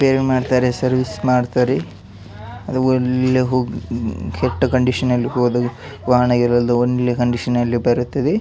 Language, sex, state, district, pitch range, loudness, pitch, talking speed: Kannada, male, Karnataka, Dakshina Kannada, 120-130 Hz, -18 LUFS, 125 Hz, 120 wpm